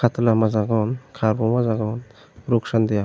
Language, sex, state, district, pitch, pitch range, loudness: Chakma, male, Tripura, Unakoti, 110 Hz, 110-120 Hz, -21 LUFS